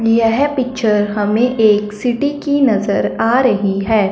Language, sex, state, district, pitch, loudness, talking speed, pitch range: Hindi, male, Punjab, Fazilka, 225 Hz, -15 LUFS, 145 wpm, 210-255 Hz